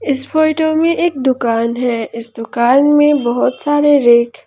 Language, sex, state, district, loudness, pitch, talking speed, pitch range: Hindi, male, Jharkhand, Ranchi, -13 LUFS, 265 Hz, 175 wpm, 235-295 Hz